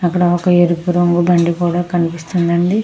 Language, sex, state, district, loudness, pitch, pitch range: Telugu, female, Andhra Pradesh, Krishna, -15 LUFS, 175 Hz, 170-175 Hz